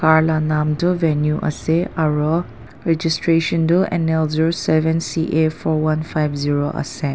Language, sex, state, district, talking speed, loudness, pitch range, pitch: Nagamese, female, Nagaland, Dimapur, 170 wpm, -19 LUFS, 155-165 Hz, 160 Hz